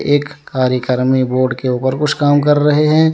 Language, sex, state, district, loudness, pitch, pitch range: Hindi, male, Jharkhand, Deoghar, -14 LUFS, 135 Hz, 130-150 Hz